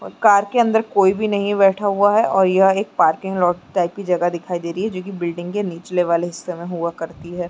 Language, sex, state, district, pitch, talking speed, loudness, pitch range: Hindi, female, Chhattisgarh, Sarguja, 185 Hz, 265 wpm, -19 LUFS, 175-200 Hz